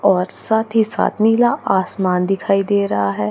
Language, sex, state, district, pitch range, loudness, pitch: Hindi, female, Chandigarh, Chandigarh, 180-220 Hz, -17 LUFS, 195 Hz